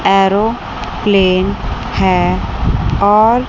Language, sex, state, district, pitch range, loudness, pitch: Hindi, female, Chandigarh, Chandigarh, 195-220 Hz, -14 LUFS, 200 Hz